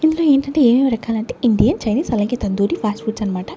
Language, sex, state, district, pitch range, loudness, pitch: Telugu, female, Andhra Pradesh, Sri Satya Sai, 215-260 Hz, -17 LUFS, 230 Hz